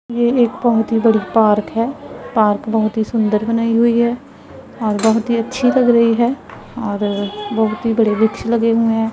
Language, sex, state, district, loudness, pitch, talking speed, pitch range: Hindi, female, Punjab, Pathankot, -16 LUFS, 225 Hz, 190 wpm, 215-235 Hz